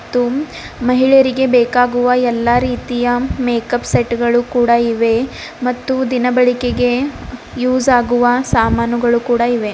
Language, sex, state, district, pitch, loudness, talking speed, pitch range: Kannada, female, Karnataka, Bidar, 245 Hz, -15 LUFS, 100 wpm, 240-250 Hz